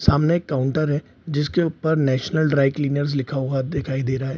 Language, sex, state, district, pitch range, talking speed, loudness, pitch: Hindi, male, Bihar, Araria, 135-155 Hz, 205 wpm, -22 LUFS, 145 Hz